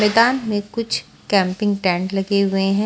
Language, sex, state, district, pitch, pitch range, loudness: Hindi, female, Maharashtra, Washim, 200 Hz, 195-210 Hz, -19 LUFS